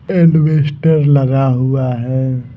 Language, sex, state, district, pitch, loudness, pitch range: Hindi, male, Bihar, Patna, 135 Hz, -13 LUFS, 130-155 Hz